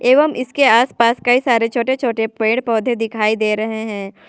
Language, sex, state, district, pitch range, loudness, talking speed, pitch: Hindi, female, Jharkhand, Ranchi, 220-250 Hz, -16 LUFS, 180 wpm, 230 Hz